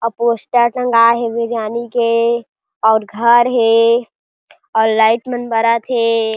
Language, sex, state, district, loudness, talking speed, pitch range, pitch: Chhattisgarhi, female, Chhattisgarh, Jashpur, -14 LUFS, 130 wpm, 225-235 Hz, 230 Hz